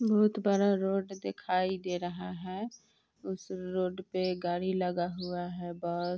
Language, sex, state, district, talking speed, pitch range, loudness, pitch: Hindi, female, Bihar, Vaishali, 155 wpm, 180-195 Hz, -33 LUFS, 185 Hz